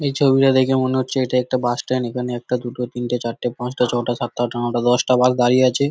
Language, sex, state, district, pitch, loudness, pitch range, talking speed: Bengali, male, West Bengal, Paschim Medinipur, 125 Hz, -19 LUFS, 120-130 Hz, 245 wpm